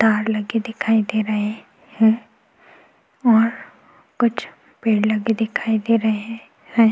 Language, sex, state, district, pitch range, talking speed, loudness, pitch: Hindi, female, Goa, North and South Goa, 215-230 Hz, 120 wpm, -20 LUFS, 225 Hz